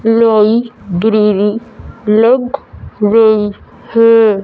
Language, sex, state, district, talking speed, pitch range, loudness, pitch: Hindi, female, Punjab, Fazilka, 40 wpm, 210-230 Hz, -11 LUFS, 220 Hz